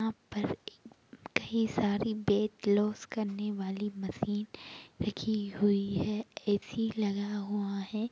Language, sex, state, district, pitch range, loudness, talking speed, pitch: Hindi, female, Bihar, Begusarai, 205-215 Hz, -33 LUFS, 125 wpm, 210 Hz